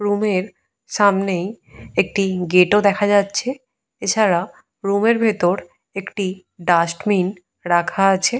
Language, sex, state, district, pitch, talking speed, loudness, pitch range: Bengali, female, Jharkhand, Jamtara, 195 Hz, 105 wpm, -19 LUFS, 185-210 Hz